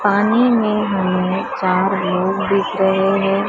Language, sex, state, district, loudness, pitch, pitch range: Hindi, female, Maharashtra, Mumbai Suburban, -17 LUFS, 195 Hz, 185-205 Hz